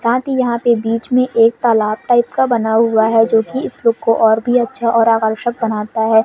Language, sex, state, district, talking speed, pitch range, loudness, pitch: Hindi, female, Madhya Pradesh, Umaria, 230 wpm, 225-240 Hz, -14 LUFS, 230 Hz